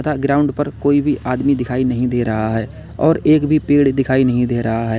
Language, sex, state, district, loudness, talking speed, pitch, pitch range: Hindi, male, Uttar Pradesh, Lalitpur, -16 LUFS, 240 wpm, 130 Hz, 120-145 Hz